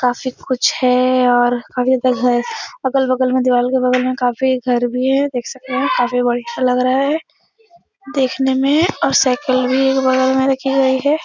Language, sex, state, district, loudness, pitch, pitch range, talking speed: Hindi, female, Uttar Pradesh, Etah, -16 LUFS, 255 Hz, 250-270 Hz, 180 wpm